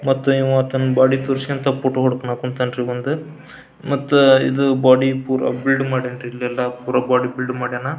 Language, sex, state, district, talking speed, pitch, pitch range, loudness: Kannada, male, Karnataka, Belgaum, 160 wpm, 130 Hz, 125-135 Hz, -18 LUFS